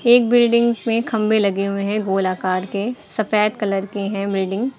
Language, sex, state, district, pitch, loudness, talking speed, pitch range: Hindi, female, Uttar Pradesh, Lucknow, 210 Hz, -19 LUFS, 200 wpm, 200-230 Hz